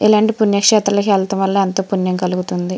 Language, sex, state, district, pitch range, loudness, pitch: Telugu, female, Andhra Pradesh, Srikakulam, 185-205 Hz, -15 LUFS, 195 Hz